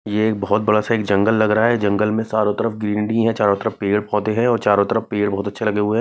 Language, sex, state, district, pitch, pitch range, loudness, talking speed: Hindi, male, Maharashtra, Mumbai Suburban, 105 Hz, 105-110 Hz, -18 LUFS, 290 wpm